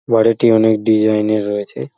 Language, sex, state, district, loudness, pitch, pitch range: Bengali, male, West Bengal, Purulia, -14 LUFS, 110 Hz, 105-115 Hz